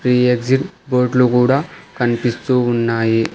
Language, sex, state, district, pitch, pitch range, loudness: Telugu, male, Telangana, Hyderabad, 125 Hz, 120-130 Hz, -16 LUFS